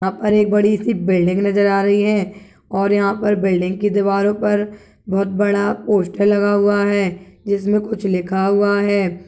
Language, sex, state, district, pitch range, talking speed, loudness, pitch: Hindi, male, Chhattisgarh, Kabirdham, 195-205 Hz, 155 wpm, -17 LUFS, 200 Hz